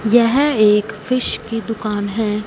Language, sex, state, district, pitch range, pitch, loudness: Hindi, female, Punjab, Fazilka, 210-235 Hz, 225 Hz, -17 LUFS